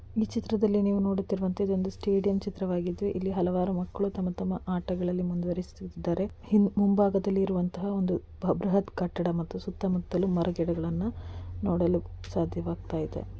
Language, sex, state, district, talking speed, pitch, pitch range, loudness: Kannada, female, Karnataka, Dakshina Kannada, 120 wpm, 185 Hz, 175-200 Hz, -29 LUFS